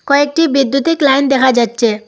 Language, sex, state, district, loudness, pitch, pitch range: Bengali, female, Assam, Hailakandi, -12 LUFS, 275 Hz, 240-285 Hz